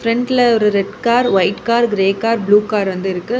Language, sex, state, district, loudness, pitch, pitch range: Tamil, female, Tamil Nadu, Kanyakumari, -15 LUFS, 225 Hz, 200-235 Hz